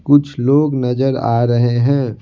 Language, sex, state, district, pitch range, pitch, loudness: Hindi, male, Bihar, Patna, 120-140 Hz, 130 Hz, -15 LUFS